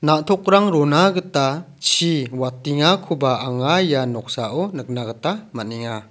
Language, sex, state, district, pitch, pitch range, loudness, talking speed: Garo, male, Meghalaya, South Garo Hills, 145 Hz, 125-170 Hz, -19 LUFS, 110 wpm